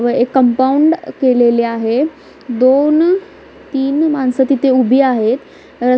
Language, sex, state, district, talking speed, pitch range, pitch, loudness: Marathi, female, Maharashtra, Nagpur, 110 wpm, 245-285 Hz, 260 Hz, -13 LUFS